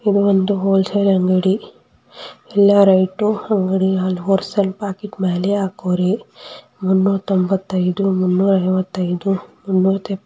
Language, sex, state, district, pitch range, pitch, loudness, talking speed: Kannada, female, Karnataka, Mysore, 185-200 Hz, 195 Hz, -17 LUFS, 95 wpm